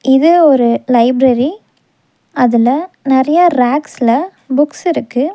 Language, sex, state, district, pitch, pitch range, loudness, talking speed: Tamil, female, Tamil Nadu, Nilgiris, 270 Hz, 250-315 Hz, -12 LUFS, 100 wpm